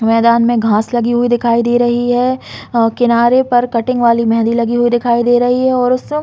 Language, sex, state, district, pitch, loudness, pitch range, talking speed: Hindi, female, Chhattisgarh, Bilaspur, 240 Hz, -13 LUFS, 235-245 Hz, 220 wpm